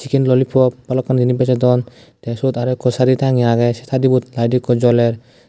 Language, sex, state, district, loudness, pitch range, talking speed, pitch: Chakma, male, Tripura, Dhalai, -16 LUFS, 120-130 Hz, 185 wpm, 125 Hz